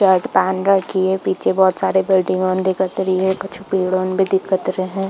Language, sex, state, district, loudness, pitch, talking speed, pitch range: Hindi, female, Chhattisgarh, Bilaspur, -18 LUFS, 190 Hz, 235 wpm, 185-190 Hz